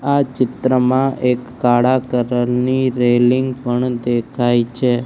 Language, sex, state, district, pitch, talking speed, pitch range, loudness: Gujarati, male, Gujarat, Gandhinagar, 125 Hz, 130 wpm, 120-130 Hz, -17 LUFS